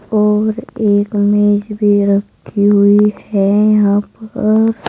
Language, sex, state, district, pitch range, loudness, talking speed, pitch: Hindi, female, Uttar Pradesh, Saharanpur, 205-215 Hz, -13 LUFS, 110 wpm, 210 Hz